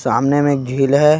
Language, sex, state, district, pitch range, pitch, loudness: Chhattisgarhi, male, Chhattisgarh, Kabirdham, 135-145 Hz, 140 Hz, -15 LUFS